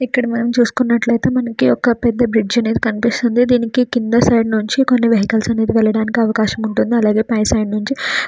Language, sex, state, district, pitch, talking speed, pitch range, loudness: Telugu, female, Andhra Pradesh, Srikakulam, 235 Hz, 100 wpm, 220-240 Hz, -15 LUFS